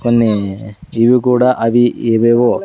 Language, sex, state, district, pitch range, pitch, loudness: Telugu, male, Andhra Pradesh, Sri Satya Sai, 115-120 Hz, 120 Hz, -13 LUFS